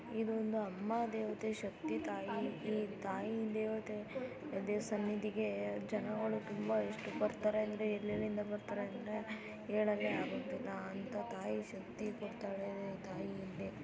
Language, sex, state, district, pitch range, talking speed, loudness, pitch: Kannada, female, Karnataka, Belgaum, 205-220 Hz, 115 wpm, -40 LUFS, 215 Hz